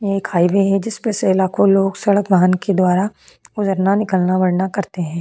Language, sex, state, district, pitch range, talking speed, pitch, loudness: Hindi, female, Goa, North and South Goa, 185-200 Hz, 195 wpm, 195 Hz, -17 LUFS